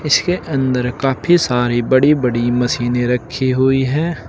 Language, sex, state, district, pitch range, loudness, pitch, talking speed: Hindi, male, Uttar Pradesh, Shamli, 125-145 Hz, -16 LUFS, 130 Hz, 140 wpm